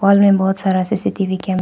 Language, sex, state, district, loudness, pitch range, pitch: Hindi, female, Arunachal Pradesh, Papum Pare, -16 LUFS, 190-200 Hz, 190 Hz